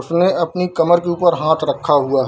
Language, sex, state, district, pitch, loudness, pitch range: Hindi, male, Bihar, Darbhanga, 170 Hz, -16 LUFS, 155-175 Hz